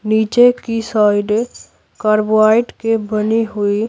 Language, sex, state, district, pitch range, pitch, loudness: Hindi, female, Bihar, Patna, 215-225 Hz, 220 Hz, -15 LUFS